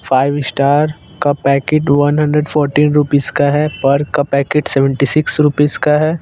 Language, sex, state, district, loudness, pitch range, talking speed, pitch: Hindi, male, Jharkhand, Ranchi, -14 LUFS, 140-150 Hz, 175 wpm, 145 Hz